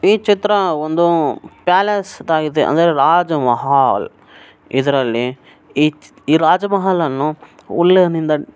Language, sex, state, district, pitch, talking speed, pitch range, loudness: Kannada, male, Karnataka, Bellary, 160 Hz, 110 wpm, 145-185 Hz, -15 LUFS